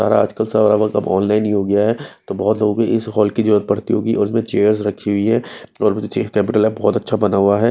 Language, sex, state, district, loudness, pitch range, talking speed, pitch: Hindi, male, Bihar, West Champaran, -17 LUFS, 105-110 Hz, 255 wpm, 105 Hz